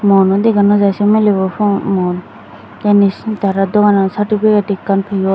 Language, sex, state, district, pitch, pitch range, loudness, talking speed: Chakma, female, Tripura, Dhalai, 200 Hz, 195-210 Hz, -13 LUFS, 170 wpm